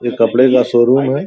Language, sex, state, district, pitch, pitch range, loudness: Hindi, male, Uttar Pradesh, Gorakhpur, 125 Hz, 120-130 Hz, -12 LUFS